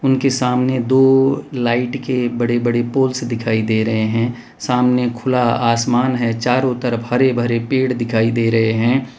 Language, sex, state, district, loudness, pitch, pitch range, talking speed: Hindi, male, Gujarat, Valsad, -17 LUFS, 120 Hz, 115-130 Hz, 165 wpm